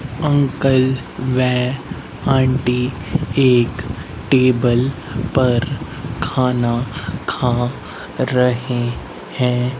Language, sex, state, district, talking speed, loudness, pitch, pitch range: Hindi, male, Haryana, Rohtak, 60 wpm, -18 LUFS, 125 Hz, 125-135 Hz